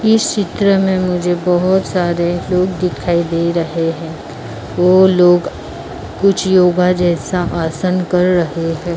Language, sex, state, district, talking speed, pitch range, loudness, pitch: Hindi, female, Maharashtra, Mumbai Suburban, 135 wpm, 170-185 Hz, -14 LUFS, 180 Hz